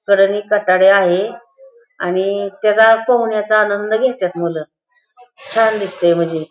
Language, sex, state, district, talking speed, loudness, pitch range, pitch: Marathi, female, Maharashtra, Pune, 110 wpm, -15 LUFS, 185-225 Hz, 205 Hz